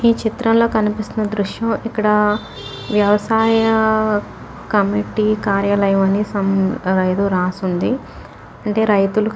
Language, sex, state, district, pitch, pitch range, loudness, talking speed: Telugu, female, Telangana, Nalgonda, 210 Hz, 200-220 Hz, -17 LUFS, 100 wpm